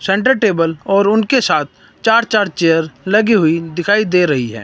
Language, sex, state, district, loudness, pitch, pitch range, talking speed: Hindi, male, Himachal Pradesh, Shimla, -14 LUFS, 195 Hz, 165-215 Hz, 180 wpm